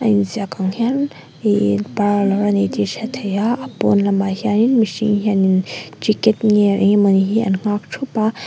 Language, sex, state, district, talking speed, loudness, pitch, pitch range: Mizo, female, Mizoram, Aizawl, 205 wpm, -17 LUFS, 205 Hz, 195-220 Hz